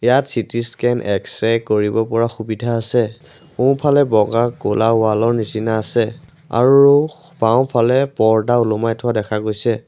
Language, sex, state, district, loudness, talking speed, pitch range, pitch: Assamese, male, Assam, Sonitpur, -17 LUFS, 135 wpm, 110-125 Hz, 115 Hz